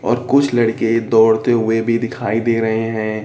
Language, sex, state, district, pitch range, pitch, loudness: Hindi, male, Bihar, Kaimur, 110-120 Hz, 115 Hz, -16 LUFS